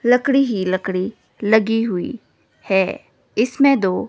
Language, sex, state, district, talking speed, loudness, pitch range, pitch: Hindi, female, Himachal Pradesh, Shimla, 105 wpm, -19 LUFS, 190-245 Hz, 220 Hz